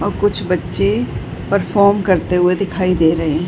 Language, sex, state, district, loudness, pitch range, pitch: Hindi, female, Bihar, Darbhanga, -16 LUFS, 165-195 Hz, 180 Hz